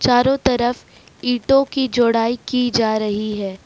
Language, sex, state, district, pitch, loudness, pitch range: Hindi, male, Jharkhand, Ranchi, 245 Hz, -18 LUFS, 220-250 Hz